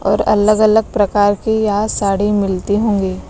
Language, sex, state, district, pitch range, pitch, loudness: Hindi, female, Bihar, West Champaran, 200-215 Hz, 205 Hz, -15 LUFS